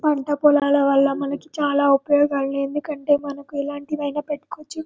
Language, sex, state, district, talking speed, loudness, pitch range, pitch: Telugu, male, Telangana, Karimnagar, 150 wpm, -21 LUFS, 280-295 Hz, 285 Hz